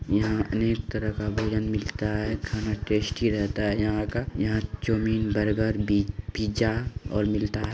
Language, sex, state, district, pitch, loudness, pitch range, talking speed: Hindi, male, Bihar, Gopalganj, 105 Hz, -27 LUFS, 105-110 Hz, 165 wpm